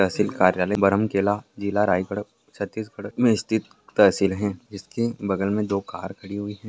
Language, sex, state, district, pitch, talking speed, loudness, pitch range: Hindi, male, Chhattisgarh, Raigarh, 100 Hz, 160 wpm, -23 LUFS, 95-105 Hz